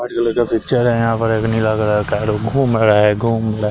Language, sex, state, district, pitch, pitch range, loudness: Hindi, male, Chandigarh, Chandigarh, 115 Hz, 105-115 Hz, -16 LUFS